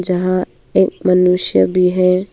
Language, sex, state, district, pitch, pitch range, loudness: Hindi, female, Arunachal Pradesh, Papum Pare, 180 Hz, 180-185 Hz, -14 LUFS